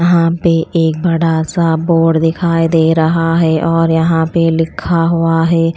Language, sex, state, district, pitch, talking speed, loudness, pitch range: Hindi, female, Chandigarh, Chandigarh, 165 Hz, 165 wpm, -13 LUFS, 165-170 Hz